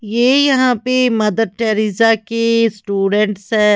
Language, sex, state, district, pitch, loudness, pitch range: Hindi, female, Chhattisgarh, Raipur, 225 Hz, -15 LUFS, 210-235 Hz